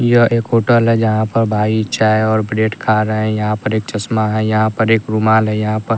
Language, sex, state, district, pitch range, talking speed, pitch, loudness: Hindi, male, Bihar, West Champaran, 110-115 Hz, 260 wpm, 110 Hz, -15 LUFS